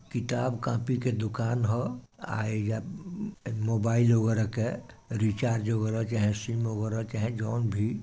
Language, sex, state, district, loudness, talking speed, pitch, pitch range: Bhojpuri, male, Bihar, Gopalganj, -29 LUFS, 140 wpm, 115 Hz, 110-120 Hz